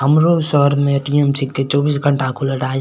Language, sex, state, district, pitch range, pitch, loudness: Maithili, male, Bihar, Supaul, 135-145 Hz, 140 Hz, -16 LUFS